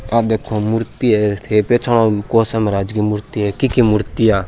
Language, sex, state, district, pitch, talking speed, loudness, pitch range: Rajasthani, male, Rajasthan, Churu, 110 Hz, 215 wpm, -16 LUFS, 105-115 Hz